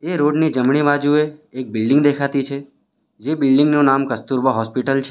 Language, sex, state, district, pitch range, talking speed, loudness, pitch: Gujarati, male, Gujarat, Valsad, 130-145 Hz, 175 wpm, -17 LUFS, 140 Hz